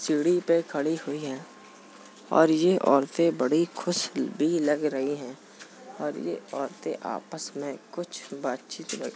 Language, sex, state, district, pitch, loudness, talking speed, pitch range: Hindi, male, Uttar Pradesh, Jalaun, 155 Hz, -27 LUFS, 135 wpm, 140-170 Hz